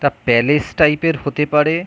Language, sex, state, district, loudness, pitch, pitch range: Bengali, male, West Bengal, North 24 Parganas, -16 LUFS, 150 Hz, 140-155 Hz